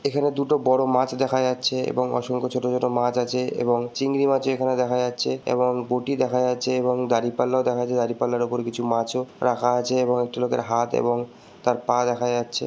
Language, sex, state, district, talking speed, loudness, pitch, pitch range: Bengali, male, West Bengal, Purulia, 205 wpm, -23 LUFS, 125 Hz, 120-130 Hz